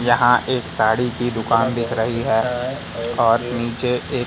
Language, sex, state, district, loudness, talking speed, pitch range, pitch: Hindi, male, Madhya Pradesh, Katni, -19 LUFS, 155 wpm, 115-125 Hz, 120 Hz